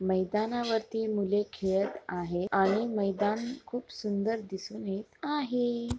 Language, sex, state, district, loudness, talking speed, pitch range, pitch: Marathi, female, Maharashtra, Sindhudurg, -31 LUFS, 110 wpm, 195-230 Hz, 210 Hz